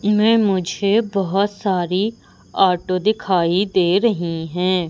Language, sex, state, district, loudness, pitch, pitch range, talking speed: Hindi, female, Madhya Pradesh, Umaria, -18 LUFS, 190 Hz, 180-210 Hz, 110 wpm